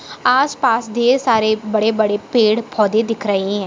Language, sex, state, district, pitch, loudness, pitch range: Hindi, female, Maharashtra, Aurangabad, 220 Hz, -16 LUFS, 215-240 Hz